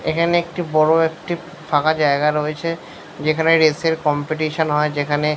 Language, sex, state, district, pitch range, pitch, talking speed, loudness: Bengali, male, West Bengal, Paschim Medinipur, 150-165 Hz, 155 Hz, 135 wpm, -18 LUFS